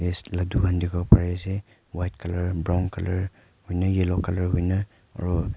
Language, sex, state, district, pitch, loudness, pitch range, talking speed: Nagamese, male, Nagaland, Kohima, 90 Hz, -25 LUFS, 90-95 Hz, 140 wpm